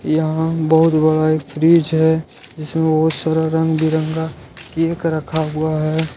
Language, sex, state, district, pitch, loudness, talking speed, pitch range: Hindi, male, Jharkhand, Ranchi, 160 Hz, -17 LUFS, 145 wpm, 155-160 Hz